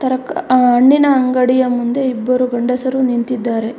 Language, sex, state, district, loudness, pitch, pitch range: Kannada, female, Karnataka, Mysore, -14 LUFS, 255 Hz, 245-260 Hz